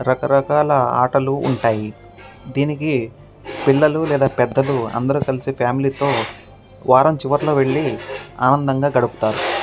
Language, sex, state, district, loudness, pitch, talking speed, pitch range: Telugu, male, Andhra Pradesh, Krishna, -18 LUFS, 135 Hz, 100 wpm, 125-140 Hz